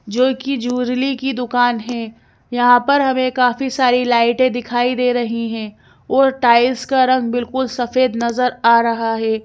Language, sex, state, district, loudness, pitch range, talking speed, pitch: Hindi, female, Madhya Pradesh, Bhopal, -16 LUFS, 235-255 Hz, 165 wpm, 245 Hz